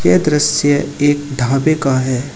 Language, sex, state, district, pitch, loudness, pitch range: Hindi, male, Uttar Pradesh, Shamli, 145 Hz, -15 LUFS, 130-145 Hz